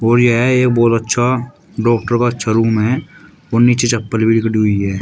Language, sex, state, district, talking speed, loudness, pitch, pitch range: Hindi, male, Uttar Pradesh, Shamli, 205 wpm, -14 LUFS, 120 Hz, 110-120 Hz